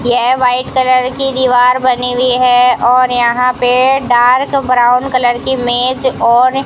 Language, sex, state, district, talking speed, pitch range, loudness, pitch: Hindi, female, Rajasthan, Bikaner, 160 wpm, 245-255 Hz, -11 LUFS, 250 Hz